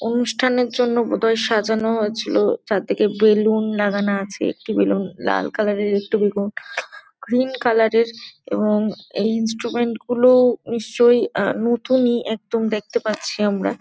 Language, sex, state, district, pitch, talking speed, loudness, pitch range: Bengali, female, West Bengal, Jalpaiguri, 225 Hz, 135 wpm, -19 LUFS, 210-240 Hz